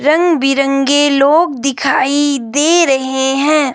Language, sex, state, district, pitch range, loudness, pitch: Hindi, female, Himachal Pradesh, Shimla, 270-300 Hz, -12 LUFS, 280 Hz